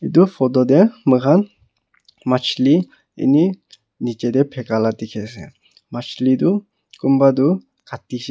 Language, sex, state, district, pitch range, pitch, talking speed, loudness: Nagamese, male, Nagaland, Kohima, 125-180 Hz, 135 Hz, 145 wpm, -17 LUFS